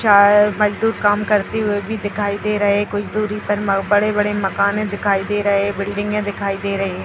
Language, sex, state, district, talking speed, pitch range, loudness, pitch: Hindi, female, Bihar, Jahanabad, 170 wpm, 200-210 Hz, -18 LUFS, 205 Hz